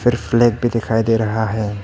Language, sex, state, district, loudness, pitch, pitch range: Hindi, male, Arunachal Pradesh, Papum Pare, -17 LUFS, 115 Hz, 110-120 Hz